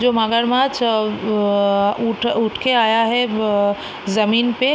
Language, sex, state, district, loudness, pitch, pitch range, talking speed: Hindi, female, Bihar, Sitamarhi, -17 LUFS, 225 Hz, 210-240 Hz, 140 wpm